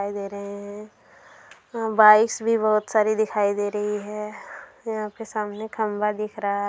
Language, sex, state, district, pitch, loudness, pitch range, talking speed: Hindi, female, Bihar, Gaya, 210 Hz, -23 LUFS, 205-220 Hz, 170 wpm